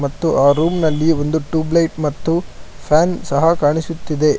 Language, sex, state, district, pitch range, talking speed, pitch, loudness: Kannada, male, Karnataka, Bangalore, 150-165 Hz, 150 wpm, 160 Hz, -17 LUFS